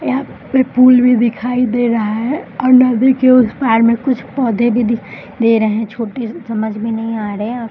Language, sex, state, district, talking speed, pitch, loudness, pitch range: Hindi, female, Bihar, Jahanabad, 235 wpm, 235 Hz, -14 LUFS, 225-255 Hz